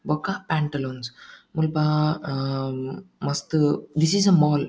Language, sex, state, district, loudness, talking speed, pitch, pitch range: Tulu, male, Karnataka, Dakshina Kannada, -24 LUFS, 130 wpm, 150 Hz, 140-160 Hz